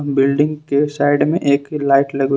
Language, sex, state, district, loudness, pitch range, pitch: Hindi, male, Jharkhand, Ranchi, -16 LUFS, 140-145 Hz, 140 Hz